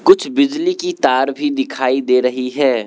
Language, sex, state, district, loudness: Hindi, male, Arunachal Pradesh, Lower Dibang Valley, -16 LUFS